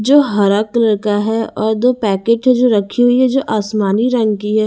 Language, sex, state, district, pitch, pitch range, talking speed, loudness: Hindi, female, Haryana, Charkhi Dadri, 220 Hz, 210-245 Hz, 230 wpm, -14 LUFS